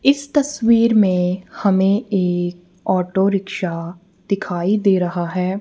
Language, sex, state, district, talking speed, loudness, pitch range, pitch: Hindi, female, Punjab, Kapurthala, 115 wpm, -18 LUFS, 180-205 Hz, 190 Hz